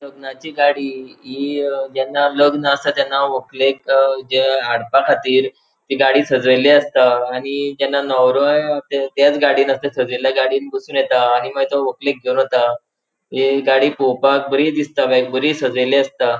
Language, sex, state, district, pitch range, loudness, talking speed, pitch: Konkani, male, Goa, North and South Goa, 130-140 Hz, -16 LUFS, 125 wpm, 135 Hz